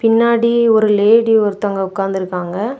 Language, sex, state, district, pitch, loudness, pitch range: Tamil, female, Tamil Nadu, Kanyakumari, 215 Hz, -14 LUFS, 195-230 Hz